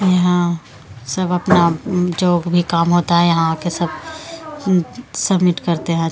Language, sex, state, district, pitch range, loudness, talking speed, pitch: Hindi, female, Delhi, New Delhi, 170-185 Hz, -17 LUFS, 135 wpm, 175 Hz